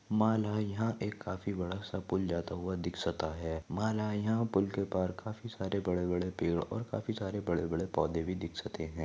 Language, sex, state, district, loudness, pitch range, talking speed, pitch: Hindi, male, Maharashtra, Sindhudurg, -35 LUFS, 90-105 Hz, 200 wpm, 95 Hz